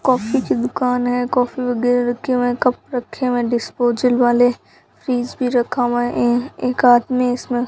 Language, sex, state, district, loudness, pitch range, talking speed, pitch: Hindi, female, Rajasthan, Bikaner, -18 LUFS, 240-250 Hz, 195 wpm, 245 Hz